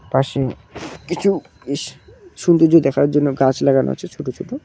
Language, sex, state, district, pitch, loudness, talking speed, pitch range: Bengali, male, West Bengal, Cooch Behar, 140 Hz, -18 LUFS, 140 wpm, 135-175 Hz